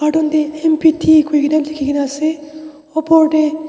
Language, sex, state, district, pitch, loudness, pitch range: Nagamese, male, Nagaland, Dimapur, 310 Hz, -14 LUFS, 300-315 Hz